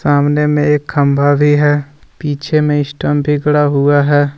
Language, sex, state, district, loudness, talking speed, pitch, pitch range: Hindi, male, Jharkhand, Deoghar, -13 LUFS, 190 wpm, 145 Hz, 145-150 Hz